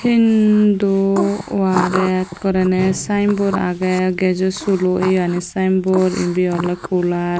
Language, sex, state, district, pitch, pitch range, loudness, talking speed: Chakma, female, Tripura, Unakoti, 185 Hz, 180-195 Hz, -17 LUFS, 95 wpm